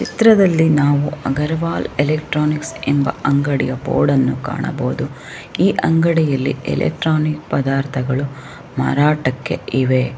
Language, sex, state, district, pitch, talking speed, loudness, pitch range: Kannada, female, Karnataka, Shimoga, 145 Hz, 90 wpm, -17 LUFS, 130-155 Hz